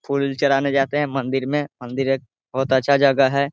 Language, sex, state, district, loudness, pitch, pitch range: Hindi, male, Bihar, Muzaffarpur, -20 LUFS, 135 Hz, 135-140 Hz